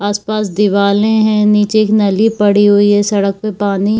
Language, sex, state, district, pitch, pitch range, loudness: Hindi, female, Jharkhand, Jamtara, 205 Hz, 205-215 Hz, -12 LUFS